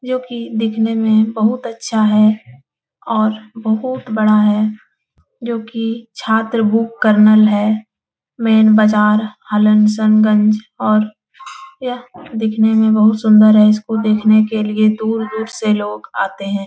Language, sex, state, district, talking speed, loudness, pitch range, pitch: Hindi, female, Bihar, Jahanabad, 135 wpm, -14 LUFS, 215-225 Hz, 215 Hz